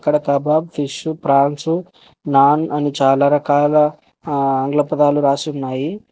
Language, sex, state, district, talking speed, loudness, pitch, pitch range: Telugu, male, Telangana, Hyderabad, 100 wpm, -17 LUFS, 145 Hz, 140-150 Hz